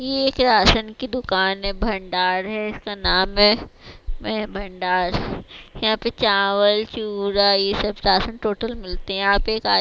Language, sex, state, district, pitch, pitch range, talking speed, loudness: Hindi, female, Bihar, West Champaran, 205 Hz, 195-220 Hz, 155 wpm, -20 LUFS